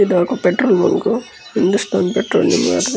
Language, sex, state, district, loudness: Telugu, male, Andhra Pradesh, Krishna, -16 LUFS